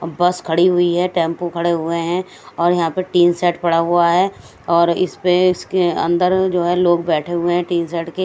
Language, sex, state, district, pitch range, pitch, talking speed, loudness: Hindi, female, Bihar, West Champaran, 170-180 Hz, 175 Hz, 220 wpm, -17 LUFS